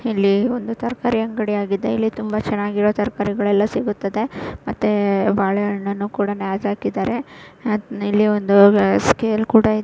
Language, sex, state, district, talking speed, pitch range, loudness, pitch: Kannada, female, Karnataka, Raichur, 130 wpm, 200-220 Hz, -19 LUFS, 205 Hz